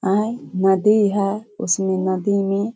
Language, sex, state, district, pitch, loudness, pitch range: Hindi, female, Bihar, Kishanganj, 200 Hz, -19 LUFS, 190-210 Hz